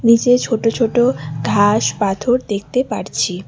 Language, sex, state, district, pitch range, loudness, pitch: Bengali, female, West Bengal, Alipurduar, 205-245 Hz, -16 LUFS, 225 Hz